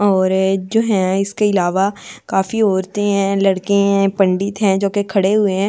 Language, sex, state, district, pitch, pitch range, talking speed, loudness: Hindi, female, Delhi, New Delhi, 195 Hz, 190-205 Hz, 180 wpm, -16 LUFS